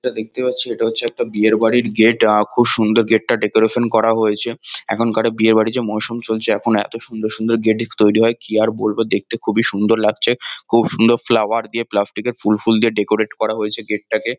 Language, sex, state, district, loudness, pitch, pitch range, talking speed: Bengali, male, West Bengal, North 24 Parganas, -16 LUFS, 110 Hz, 110-115 Hz, 220 wpm